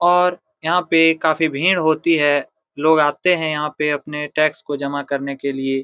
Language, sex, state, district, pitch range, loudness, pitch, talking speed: Hindi, male, Jharkhand, Jamtara, 145-165 Hz, -18 LUFS, 155 Hz, 195 wpm